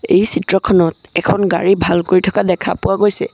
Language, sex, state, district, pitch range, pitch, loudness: Assamese, male, Assam, Sonitpur, 175-210 Hz, 195 Hz, -14 LUFS